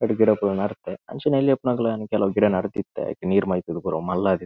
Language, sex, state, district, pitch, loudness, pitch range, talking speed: Tulu, male, Karnataka, Dakshina Kannada, 105 Hz, -23 LUFS, 95-115 Hz, 255 wpm